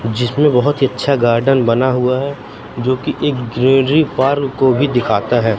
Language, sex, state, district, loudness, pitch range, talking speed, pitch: Hindi, male, Madhya Pradesh, Katni, -15 LUFS, 120-140 Hz, 170 wpm, 130 Hz